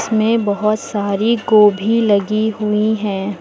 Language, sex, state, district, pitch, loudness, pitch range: Hindi, female, Uttar Pradesh, Lucknow, 215 Hz, -16 LUFS, 205-220 Hz